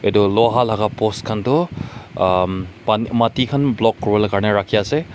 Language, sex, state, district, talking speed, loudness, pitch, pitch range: Nagamese, male, Nagaland, Kohima, 185 wpm, -18 LUFS, 110 Hz, 105-120 Hz